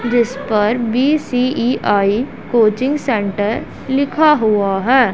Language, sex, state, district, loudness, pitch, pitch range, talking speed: Hindi, female, Punjab, Pathankot, -16 LUFS, 240 Hz, 215-265 Hz, 95 wpm